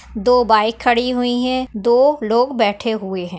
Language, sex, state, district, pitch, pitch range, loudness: Hindi, female, Maharashtra, Nagpur, 235 Hz, 215-250 Hz, -16 LUFS